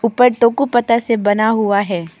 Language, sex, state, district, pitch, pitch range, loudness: Hindi, female, Arunachal Pradesh, Papum Pare, 230 Hz, 205-240 Hz, -15 LUFS